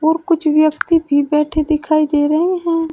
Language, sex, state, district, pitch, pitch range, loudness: Hindi, female, Uttar Pradesh, Shamli, 310 Hz, 300-330 Hz, -15 LUFS